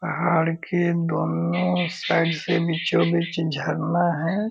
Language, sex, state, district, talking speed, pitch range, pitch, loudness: Hindi, male, Bihar, Purnia, 120 wpm, 165-175 Hz, 170 Hz, -23 LUFS